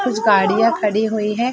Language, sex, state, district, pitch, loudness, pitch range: Hindi, female, Uttar Pradesh, Jalaun, 220 Hz, -17 LUFS, 210-230 Hz